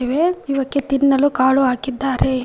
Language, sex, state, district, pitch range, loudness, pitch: Kannada, female, Karnataka, Koppal, 260-280 Hz, -18 LUFS, 270 Hz